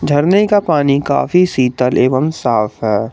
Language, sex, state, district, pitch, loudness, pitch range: Hindi, male, Jharkhand, Garhwa, 140 Hz, -14 LUFS, 125-160 Hz